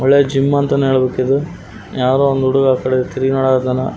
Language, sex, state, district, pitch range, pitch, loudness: Kannada, male, Karnataka, Raichur, 130-135 Hz, 130 Hz, -15 LUFS